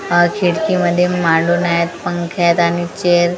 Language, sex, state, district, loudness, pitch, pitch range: Marathi, female, Maharashtra, Gondia, -15 LUFS, 175 Hz, 170-175 Hz